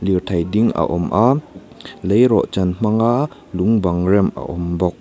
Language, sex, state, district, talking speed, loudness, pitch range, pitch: Mizo, male, Mizoram, Aizawl, 155 wpm, -17 LUFS, 85-115 Hz, 95 Hz